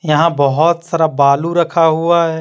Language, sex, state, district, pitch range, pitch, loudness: Hindi, male, Jharkhand, Deoghar, 155-170 Hz, 165 Hz, -13 LUFS